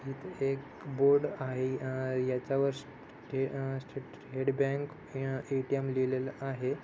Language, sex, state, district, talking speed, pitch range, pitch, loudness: Marathi, male, Maharashtra, Dhule, 115 wpm, 130-140 Hz, 135 Hz, -33 LUFS